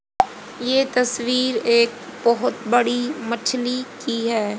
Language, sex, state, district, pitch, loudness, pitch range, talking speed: Hindi, female, Haryana, Jhajjar, 245 Hz, -21 LUFS, 235-255 Hz, 105 wpm